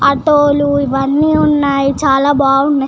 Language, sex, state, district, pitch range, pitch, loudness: Telugu, female, Telangana, Nalgonda, 275-295 Hz, 285 Hz, -12 LUFS